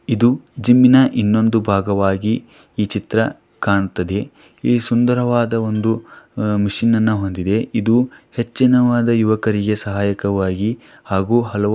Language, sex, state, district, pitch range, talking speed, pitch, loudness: Kannada, male, Karnataka, Dharwad, 100-120 Hz, 105 wpm, 110 Hz, -17 LUFS